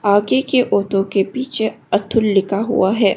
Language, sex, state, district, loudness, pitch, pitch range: Hindi, female, Arunachal Pradesh, Longding, -17 LUFS, 205 Hz, 195-240 Hz